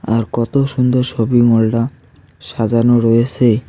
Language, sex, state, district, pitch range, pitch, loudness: Bengali, male, West Bengal, Cooch Behar, 115-125 Hz, 120 Hz, -14 LUFS